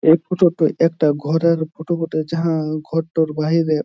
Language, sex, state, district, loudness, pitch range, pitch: Bengali, male, West Bengal, Jhargram, -19 LUFS, 155-165 Hz, 160 Hz